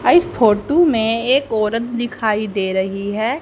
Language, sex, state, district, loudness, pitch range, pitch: Hindi, female, Haryana, Charkhi Dadri, -17 LUFS, 210-250 Hz, 225 Hz